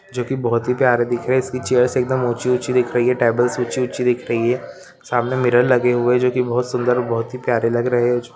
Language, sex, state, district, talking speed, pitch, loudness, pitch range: Hindi, male, Rajasthan, Nagaur, 245 wpm, 125 Hz, -18 LUFS, 120-125 Hz